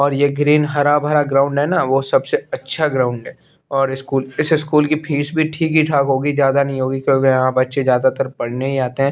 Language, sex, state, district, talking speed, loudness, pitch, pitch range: Hindi, male, Chandigarh, Chandigarh, 230 wpm, -17 LUFS, 140 Hz, 135-150 Hz